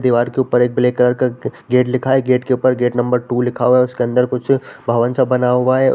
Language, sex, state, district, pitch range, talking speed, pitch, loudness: Hindi, male, Bihar, Samastipur, 125-130 Hz, 280 wpm, 125 Hz, -16 LUFS